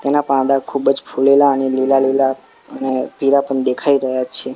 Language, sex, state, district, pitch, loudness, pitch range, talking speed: Gujarati, male, Gujarat, Gandhinagar, 135 Hz, -16 LUFS, 130-140 Hz, 170 wpm